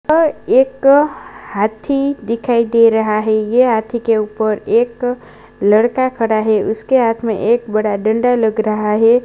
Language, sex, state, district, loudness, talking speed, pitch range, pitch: Hindi, male, Bihar, Jahanabad, -15 LUFS, 155 wpm, 215-245 Hz, 225 Hz